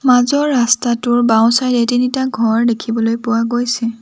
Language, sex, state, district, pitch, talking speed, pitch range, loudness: Assamese, female, Assam, Sonitpur, 240 Hz, 120 wpm, 230-250 Hz, -15 LUFS